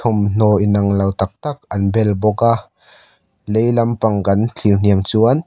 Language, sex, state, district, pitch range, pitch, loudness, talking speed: Mizo, male, Mizoram, Aizawl, 100-115 Hz, 105 Hz, -16 LUFS, 165 wpm